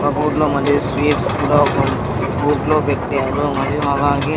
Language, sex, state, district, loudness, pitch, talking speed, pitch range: Telugu, male, Andhra Pradesh, Sri Satya Sai, -17 LUFS, 145 Hz, 125 wpm, 135-145 Hz